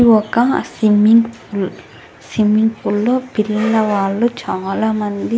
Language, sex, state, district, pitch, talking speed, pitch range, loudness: Telugu, female, Andhra Pradesh, Anantapur, 215 Hz, 120 wpm, 210-230 Hz, -16 LUFS